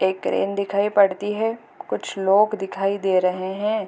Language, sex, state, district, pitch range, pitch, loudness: Hindi, female, Bihar, Gopalganj, 190-210 Hz, 200 Hz, -22 LUFS